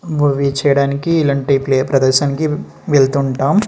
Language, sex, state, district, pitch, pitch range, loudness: Telugu, male, Andhra Pradesh, Srikakulam, 140 Hz, 135-150 Hz, -15 LUFS